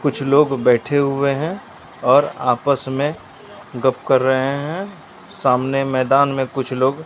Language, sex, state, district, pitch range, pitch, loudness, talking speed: Hindi, male, Bihar, Katihar, 130-145 Hz, 135 Hz, -18 LUFS, 145 wpm